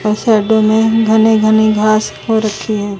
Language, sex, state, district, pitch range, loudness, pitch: Hindi, female, Chandigarh, Chandigarh, 215-220 Hz, -12 LUFS, 215 Hz